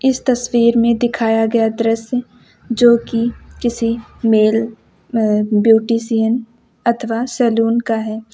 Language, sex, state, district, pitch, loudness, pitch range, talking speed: Hindi, female, Uttar Pradesh, Lucknow, 230 Hz, -16 LUFS, 225-240 Hz, 115 wpm